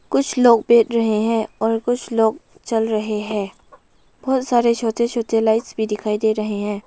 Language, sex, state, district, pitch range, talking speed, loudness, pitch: Hindi, female, Arunachal Pradesh, Lower Dibang Valley, 215-235 Hz, 185 wpm, -19 LUFS, 225 Hz